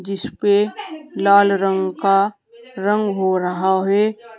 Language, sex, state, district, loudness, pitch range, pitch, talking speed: Hindi, female, Uttar Pradesh, Saharanpur, -18 LUFS, 195-220 Hz, 200 Hz, 125 wpm